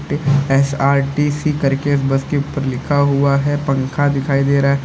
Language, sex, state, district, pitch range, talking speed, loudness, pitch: Hindi, male, Uttar Pradesh, Lalitpur, 140-145 Hz, 160 wpm, -16 LUFS, 140 Hz